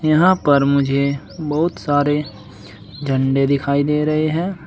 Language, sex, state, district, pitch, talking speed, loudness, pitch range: Hindi, male, Uttar Pradesh, Saharanpur, 145 Hz, 130 wpm, -17 LUFS, 140-155 Hz